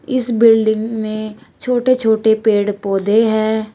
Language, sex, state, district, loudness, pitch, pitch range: Hindi, female, Uttar Pradesh, Shamli, -15 LUFS, 220 Hz, 215-225 Hz